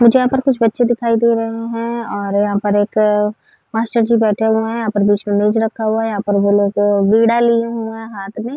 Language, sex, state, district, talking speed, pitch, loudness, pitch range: Hindi, female, Uttar Pradesh, Varanasi, 250 wpm, 220 Hz, -16 LUFS, 205-230 Hz